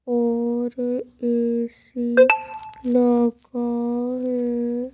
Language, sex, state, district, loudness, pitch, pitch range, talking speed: Hindi, female, Madhya Pradesh, Bhopal, -22 LUFS, 240 Hz, 240-250 Hz, 50 wpm